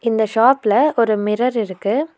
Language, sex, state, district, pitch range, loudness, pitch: Tamil, female, Tamil Nadu, Nilgiris, 210-250 Hz, -17 LUFS, 225 Hz